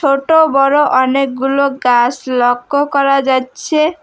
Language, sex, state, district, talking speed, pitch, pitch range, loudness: Bengali, female, West Bengal, Alipurduar, 105 wpm, 275 Hz, 260-285 Hz, -13 LUFS